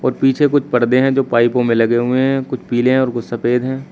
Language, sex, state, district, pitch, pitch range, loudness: Hindi, male, Uttar Pradesh, Shamli, 130 Hz, 120-135 Hz, -15 LUFS